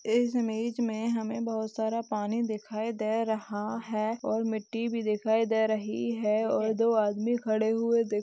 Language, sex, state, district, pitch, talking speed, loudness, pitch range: Hindi, female, Jharkhand, Sahebganj, 220 Hz, 170 wpm, -29 LUFS, 215-230 Hz